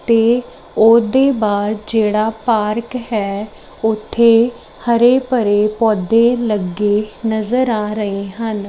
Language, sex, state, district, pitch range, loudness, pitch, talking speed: Punjabi, female, Chandigarh, Chandigarh, 210-235 Hz, -15 LUFS, 220 Hz, 105 wpm